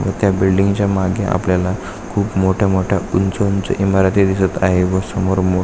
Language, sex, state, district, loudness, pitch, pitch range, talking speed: Marathi, male, Maharashtra, Aurangabad, -16 LUFS, 95 Hz, 95-100 Hz, 180 wpm